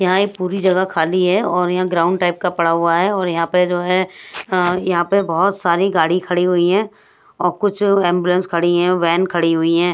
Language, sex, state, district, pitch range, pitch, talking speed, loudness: Hindi, female, Odisha, Sambalpur, 175-185 Hz, 180 Hz, 215 wpm, -16 LUFS